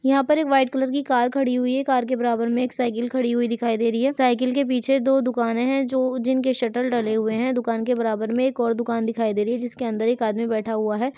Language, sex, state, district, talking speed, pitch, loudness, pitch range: Hindi, female, Uttar Pradesh, Ghazipur, 280 wpm, 245 Hz, -22 LUFS, 230-260 Hz